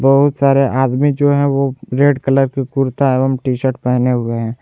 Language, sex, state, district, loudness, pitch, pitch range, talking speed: Hindi, male, Jharkhand, Garhwa, -15 LUFS, 135 Hz, 130-140 Hz, 205 wpm